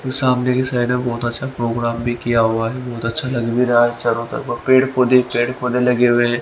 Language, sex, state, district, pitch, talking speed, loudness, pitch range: Hindi, male, Haryana, Rohtak, 120 Hz, 235 wpm, -17 LUFS, 120-125 Hz